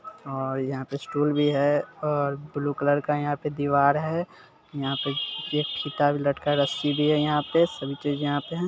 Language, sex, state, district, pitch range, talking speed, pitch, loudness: Hindi, male, Bihar, Sitamarhi, 140-150 Hz, 220 wpm, 145 Hz, -25 LUFS